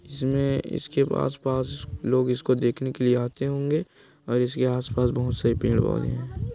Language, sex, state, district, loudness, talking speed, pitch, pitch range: Hindi, male, Chhattisgarh, Korba, -25 LUFS, 155 wpm, 125 Hz, 120-135 Hz